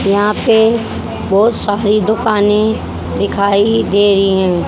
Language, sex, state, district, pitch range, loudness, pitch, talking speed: Hindi, female, Haryana, Jhajjar, 200-220 Hz, -13 LUFS, 205 Hz, 115 wpm